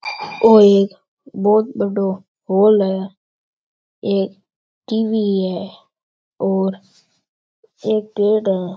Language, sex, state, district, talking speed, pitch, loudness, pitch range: Rajasthani, male, Rajasthan, Churu, 80 wpm, 205 Hz, -17 LUFS, 195-220 Hz